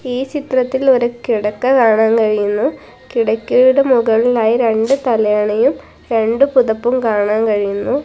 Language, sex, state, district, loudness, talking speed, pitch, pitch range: Malayalam, female, Kerala, Kasaragod, -14 LUFS, 105 wpm, 230 Hz, 220-255 Hz